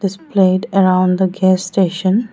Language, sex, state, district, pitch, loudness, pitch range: English, female, Arunachal Pradesh, Lower Dibang Valley, 190 Hz, -15 LUFS, 185-195 Hz